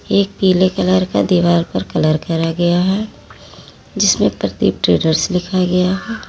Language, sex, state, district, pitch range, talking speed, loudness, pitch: Hindi, female, Uttar Pradesh, Lalitpur, 170-190 Hz, 155 wpm, -15 LUFS, 180 Hz